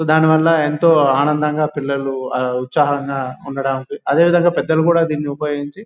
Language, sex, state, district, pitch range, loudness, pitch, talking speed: Telugu, male, Telangana, Nalgonda, 140-160 Hz, -17 LUFS, 150 Hz, 125 wpm